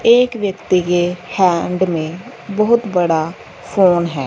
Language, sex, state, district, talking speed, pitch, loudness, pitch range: Hindi, female, Punjab, Fazilka, 125 wpm, 185 Hz, -16 LUFS, 175-215 Hz